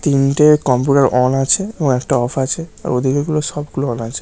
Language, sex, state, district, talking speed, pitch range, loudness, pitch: Bengali, male, West Bengal, North 24 Parganas, 230 wpm, 130-150 Hz, -16 LUFS, 135 Hz